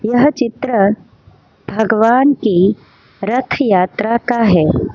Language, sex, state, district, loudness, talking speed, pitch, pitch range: Hindi, female, Gujarat, Valsad, -14 LUFS, 95 wpm, 225 Hz, 200-245 Hz